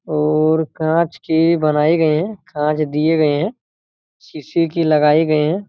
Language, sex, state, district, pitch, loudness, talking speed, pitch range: Hindi, male, Chhattisgarh, Raigarh, 155 Hz, -16 LUFS, 160 wpm, 150-165 Hz